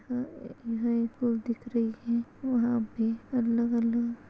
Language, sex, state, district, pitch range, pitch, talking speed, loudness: Hindi, female, Maharashtra, Sindhudurg, 230-240 Hz, 235 Hz, 165 wpm, -29 LUFS